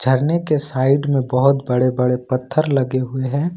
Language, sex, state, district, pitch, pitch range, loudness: Hindi, male, Jharkhand, Ranchi, 135 Hz, 130-145 Hz, -18 LUFS